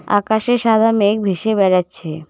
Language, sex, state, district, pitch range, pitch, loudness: Bengali, female, West Bengal, Cooch Behar, 185-220 Hz, 205 Hz, -15 LUFS